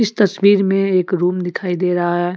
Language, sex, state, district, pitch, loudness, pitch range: Hindi, male, Jharkhand, Deoghar, 185 Hz, -16 LUFS, 180-195 Hz